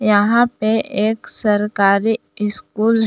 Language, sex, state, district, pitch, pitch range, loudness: Hindi, female, Jharkhand, Palamu, 215 Hz, 210-225 Hz, -16 LUFS